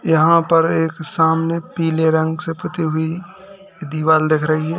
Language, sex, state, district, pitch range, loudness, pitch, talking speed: Hindi, male, Uttar Pradesh, Lalitpur, 160-170 Hz, -17 LUFS, 165 Hz, 160 wpm